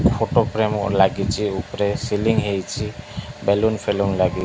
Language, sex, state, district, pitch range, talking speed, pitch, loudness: Odia, male, Odisha, Malkangiri, 100-110 Hz, 120 wpm, 105 Hz, -21 LUFS